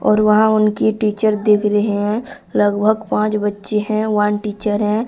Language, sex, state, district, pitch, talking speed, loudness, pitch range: Hindi, female, Odisha, Sambalpur, 210 Hz, 165 wpm, -17 LUFS, 210-215 Hz